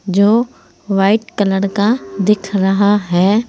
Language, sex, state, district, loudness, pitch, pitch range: Hindi, female, Uttar Pradesh, Saharanpur, -14 LUFS, 200 Hz, 195-210 Hz